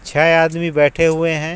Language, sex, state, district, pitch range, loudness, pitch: Hindi, male, Jharkhand, Ranchi, 155-165 Hz, -15 LUFS, 165 Hz